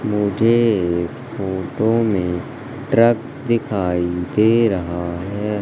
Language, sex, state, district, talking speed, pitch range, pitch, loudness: Hindi, male, Madhya Pradesh, Katni, 95 wpm, 90-115 Hz, 105 Hz, -19 LUFS